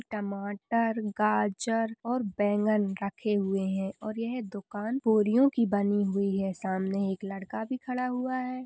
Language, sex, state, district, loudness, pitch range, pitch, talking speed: Hindi, female, Uttar Pradesh, Jalaun, -29 LUFS, 195-230 Hz, 210 Hz, 150 wpm